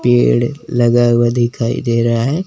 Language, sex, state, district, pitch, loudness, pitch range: Hindi, male, Chandigarh, Chandigarh, 120 Hz, -14 LUFS, 115-120 Hz